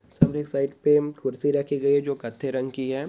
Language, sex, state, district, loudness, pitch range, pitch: Hindi, male, Goa, North and South Goa, -25 LUFS, 135-145 Hz, 140 Hz